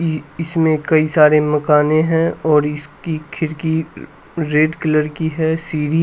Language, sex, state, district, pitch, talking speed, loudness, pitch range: Hindi, male, Bihar, West Champaran, 155 Hz, 150 wpm, -17 LUFS, 150-160 Hz